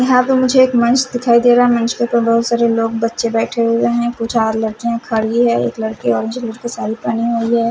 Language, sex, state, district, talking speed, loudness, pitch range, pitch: Hindi, male, Punjab, Fazilka, 250 wpm, -15 LUFS, 230-240 Hz, 235 Hz